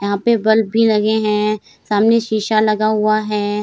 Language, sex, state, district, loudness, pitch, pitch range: Hindi, female, Bihar, Samastipur, -16 LUFS, 215 Hz, 210-220 Hz